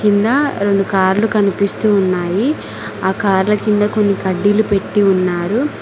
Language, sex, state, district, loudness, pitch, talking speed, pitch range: Telugu, female, Telangana, Mahabubabad, -15 LUFS, 200 Hz, 115 wpm, 190-210 Hz